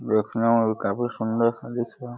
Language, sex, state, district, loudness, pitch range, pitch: Hindi, male, Uttar Pradesh, Deoria, -24 LUFS, 110-120 Hz, 115 Hz